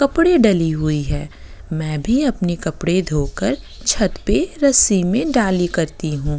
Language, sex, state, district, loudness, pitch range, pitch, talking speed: Hindi, female, Bihar, Kishanganj, -18 LUFS, 155-245 Hz, 175 Hz, 160 wpm